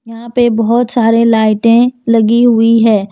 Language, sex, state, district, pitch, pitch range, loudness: Hindi, female, Jharkhand, Deoghar, 230 Hz, 225-235 Hz, -10 LUFS